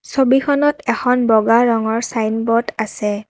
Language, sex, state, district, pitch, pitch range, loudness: Assamese, female, Assam, Kamrup Metropolitan, 230 Hz, 220-250 Hz, -16 LUFS